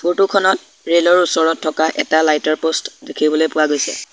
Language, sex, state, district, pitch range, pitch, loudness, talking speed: Assamese, male, Assam, Sonitpur, 155-175 Hz, 160 Hz, -16 LUFS, 190 wpm